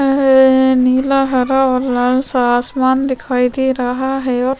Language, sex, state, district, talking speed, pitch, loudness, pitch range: Hindi, female, Chhattisgarh, Sukma, 145 wpm, 260 Hz, -14 LUFS, 250-265 Hz